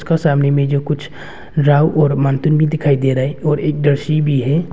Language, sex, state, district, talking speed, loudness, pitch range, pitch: Hindi, male, Arunachal Pradesh, Longding, 190 wpm, -15 LUFS, 140-155 Hz, 145 Hz